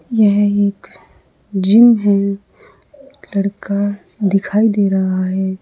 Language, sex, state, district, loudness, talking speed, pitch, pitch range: Hindi, female, Uttar Pradesh, Saharanpur, -15 LUFS, 95 wpm, 200 Hz, 190-210 Hz